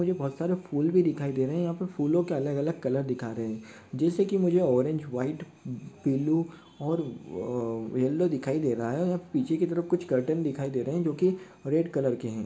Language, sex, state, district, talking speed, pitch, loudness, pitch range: Hindi, male, Maharashtra, Nagpur, 230 wpm, 150 Hz, -28 LUFS, 130-175 Hz